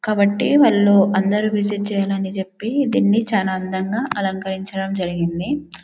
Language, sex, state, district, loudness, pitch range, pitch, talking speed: Telugu, female, Telangana, Karimnagar, -19 LUFS, 190-215 Hz, 200 Hz, 125 wpm